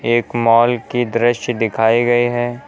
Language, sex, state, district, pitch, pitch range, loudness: Hindi, male, Uttar Pradesh, Lucknow, 120 Hz, 115-120 Hz, -16 LUFS